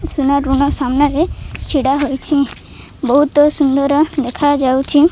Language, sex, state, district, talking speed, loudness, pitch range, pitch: Odia, female, Odisha, Malkangiri, 105 wpm, -15 LUFS, 270-295 Hz, 285 Hz